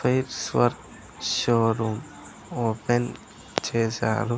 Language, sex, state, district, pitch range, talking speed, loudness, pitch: Telugu, male, Andhra Pradesh, Sri Satya Sai, 110-120 Hz, 70 wpm, -26 LUFS, 115 Hz